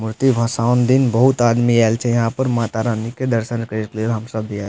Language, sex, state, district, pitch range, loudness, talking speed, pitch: Maithili, male, Bihar, Supaul, 110-120 Hz, -18 LUFS, 270 wpm, 115 Hz